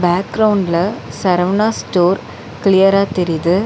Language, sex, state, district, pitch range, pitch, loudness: Tamil, female, Tamil Nadu, Chennai, 170-195 Hz, 180 Hz, -15 LUFS